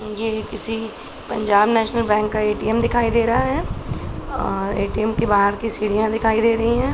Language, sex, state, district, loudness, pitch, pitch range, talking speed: Hindi, male, Bihar, Araria, -20 LUFS, 220 Hz, 215-230 Hz, 180 wpm